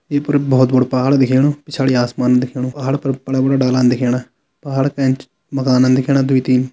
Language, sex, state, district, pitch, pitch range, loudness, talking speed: Kumaoni, male, Uttarakhand, Tehri Garhwal, 130 Hz, 130-135 Hz, -16 LUFS, 185 wpm